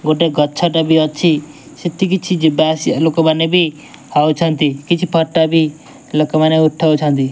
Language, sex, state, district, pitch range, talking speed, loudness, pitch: Odia, male, Odisha, Nuapada, 155-170 Hz, 145 wpm, -14 LUFS, 160 Hz